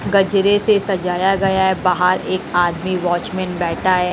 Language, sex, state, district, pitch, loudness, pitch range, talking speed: Hindi, female, Haryana, Rohtak, 185 Hz, -17 LUFS, 180-195 Hz, 160 wpm